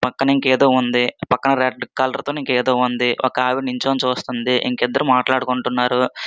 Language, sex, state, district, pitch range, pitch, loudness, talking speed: Telugu, male, Andhra Pradesh, Srikakulam, 125-130 Hz, 125 Hz, -18 LUFS, 180 wpm